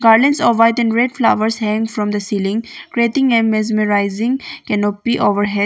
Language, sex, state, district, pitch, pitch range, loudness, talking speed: English, female, Arunachal Pradesh, Longding, 225 Hz, 205-235 Hz, -16 LUFS, 160 wpm